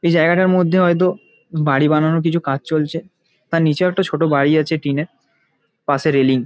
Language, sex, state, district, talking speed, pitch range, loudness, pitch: Bengali, male, West Bengal, Kolkata, 195 wpm, 150-175 Hz, -17 LUFS, 160 Hz